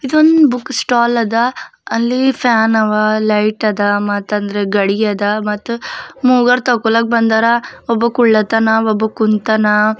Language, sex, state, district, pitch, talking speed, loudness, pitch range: Kannada, female, Karnataka, Bidar, 225 Hz, 115 wpm, -14 LUFS, 215-240 Hz